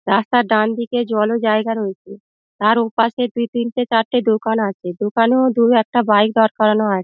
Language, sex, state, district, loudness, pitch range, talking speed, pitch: Bengali, female, West Bengal, Dakshin Dinajpur, -17 LUFS, 215-235 Hz, 185 wpm, 225 Hz